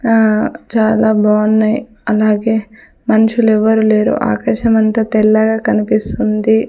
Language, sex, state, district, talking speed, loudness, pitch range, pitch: Telugu, female, Andhra Pradesh, Sri Satya Sai, 80 wpm, -13 LUFS, 215-220 Hz, 220 Hz